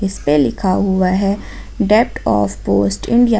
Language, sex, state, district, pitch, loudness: Hindi, female, Jharkhand, Ranchi, 190 Hz, -16 LUFS